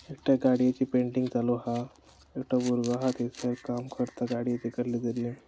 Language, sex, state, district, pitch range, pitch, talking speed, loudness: Konkani, male, Goa, North and South Goa, 120-125 Hz, 120 Hz, 155 wpm, -29 LUFS